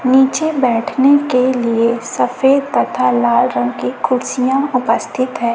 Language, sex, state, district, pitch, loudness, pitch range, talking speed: Hindi, female, Chhattisgarh, Raipur, 250 Hz, -15 LUFS, 230-265 Hz, 130 wpm